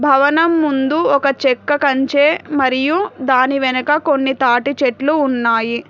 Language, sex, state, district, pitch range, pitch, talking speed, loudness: Telugu, female, Telangana, Hyderabad, 260-295 Hz, 275 Hz, 120 wpm, -15 LUFS